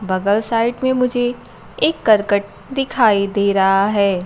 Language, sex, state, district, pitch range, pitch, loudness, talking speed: Hindi, female, Bihar, Kaimur, 200-245 Hz, 210 Hz, -17 LUFS, 140 wpm